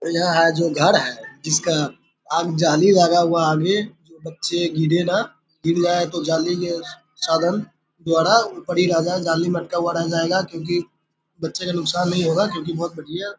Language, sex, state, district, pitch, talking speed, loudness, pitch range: Hindi, male, Bihar, Sitamarhi, 170 Hz, 195 wpm, -20 LUFS, 165-175 Hz